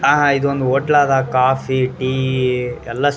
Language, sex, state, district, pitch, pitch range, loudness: Kannada, male, Karnataka, Raichur, 130 Hz, 130-140 Hz, -17 LUFS